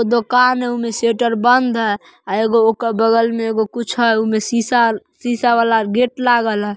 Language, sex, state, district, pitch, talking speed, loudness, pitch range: Magahi, female, Bihar, Samastipur, 230 Hz, 185 wpm, -16 LUFS, 225-240 Hz